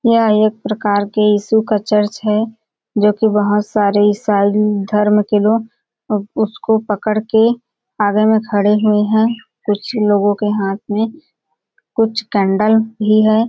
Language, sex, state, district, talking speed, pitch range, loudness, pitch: Hindi, female, Chhattisgarh, Balrampur, 140 wpm, 210-220 Hz, -15 LUFS, 215 Hz